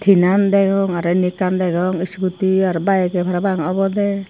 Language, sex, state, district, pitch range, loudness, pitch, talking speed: Chakma, female, Tripura, Dhalai, 180-195 Hz, -17 LUFS, 185 Hz, 155 wpm